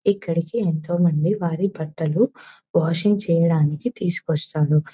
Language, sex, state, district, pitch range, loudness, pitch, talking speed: Telugu, female, Telangana, Nalgonda, 160-190 Hz, -22 LUFS, 170 Hz, 95 wpm